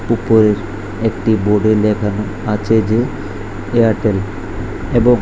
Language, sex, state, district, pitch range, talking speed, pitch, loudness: Bengali, male, Tripura, West Tripura, 105-110 Hz, 105 wpm, 105 Hz, -16 LUFS